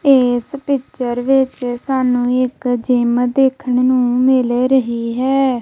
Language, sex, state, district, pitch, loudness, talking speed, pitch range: Punjabi, female, Punjab, Kapurthala, 255 Hz, -16 LUFS, 115 wpm, 245-265 Hz